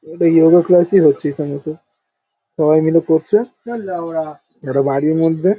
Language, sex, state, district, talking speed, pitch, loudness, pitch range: Bengali, male, West Bengal, Paschim Medinipur, 150 wpm, 160 Hz, -15 LUFS, 155-175 Hz